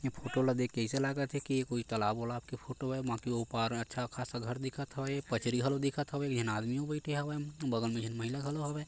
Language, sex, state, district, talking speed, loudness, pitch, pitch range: Chhattisgarhi, male, Chhattisgarh, Korba, 270 wpm, -36 LUFS, 130 Hz, 120-140 Hz